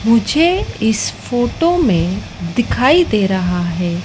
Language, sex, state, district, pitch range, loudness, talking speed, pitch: Hindi, female, Madhya Pradesh, Dhar, 180-295 Hz, -15 LUFS, 120 wpm, 220 Hz